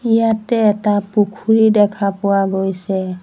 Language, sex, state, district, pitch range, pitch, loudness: Assamese, female, Assam, Sonitpur, 195-220 Hz, 205 Hz, -16 LUFS